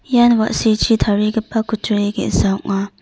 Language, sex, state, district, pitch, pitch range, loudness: Garo, female, Meghalaya, North Garo Hills, 220 Hz, 205-225 Hz, -17 LUFS